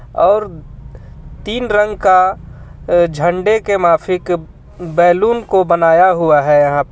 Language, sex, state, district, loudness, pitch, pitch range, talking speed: Hindi, male, Jharkhand, Ranchi, -13 LUFS, 175 Hz, 160-200 Hz, 120 wpm